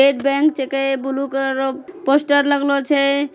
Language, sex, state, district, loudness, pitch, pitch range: Angika, female, Bihar, Bhagalpur, -18 LUFS, 275 Hz, 270-285 Hz